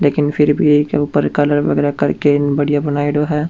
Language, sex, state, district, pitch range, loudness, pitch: Rajasthani, male, Rajasthan, Churu, 145-150 Hz, -15 LUFS, 145 Hz